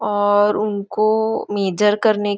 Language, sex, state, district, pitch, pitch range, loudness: Hindi, female, Maharashtra, Nagpur, 205 Hz, 205-215 Hz, -18 LUFS